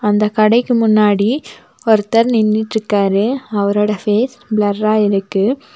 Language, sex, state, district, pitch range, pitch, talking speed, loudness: Tamil, female, Tamil Nadu, Nilgiris, 205-230 Hz, 215 Hz, 95 wpm, -15 LUFS